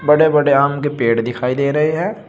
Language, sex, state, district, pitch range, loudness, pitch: Hindi, male, Uttar Pradesh, Shamli, 135-155 Hz, -16 LUFS, 145 Hz